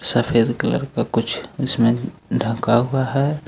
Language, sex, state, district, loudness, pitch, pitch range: Hindi, male, Jharkhand, Ranchi, -19 LUFS, 120 Hz, 115-135 Hz